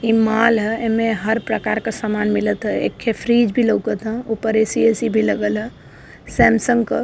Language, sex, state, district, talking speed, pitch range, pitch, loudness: Hindi, female, Uttar Pradesh, Varanasi, 205 wpm, 220-230 Hz, 225 Hz, -18 LUFS